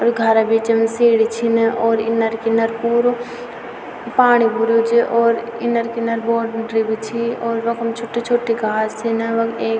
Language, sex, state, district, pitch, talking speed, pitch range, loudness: Garhwali, female, Uttarakhand, Tehri Garhwal, 230 Hz, 160 wpm, 225-235 Hz, -17 LUFS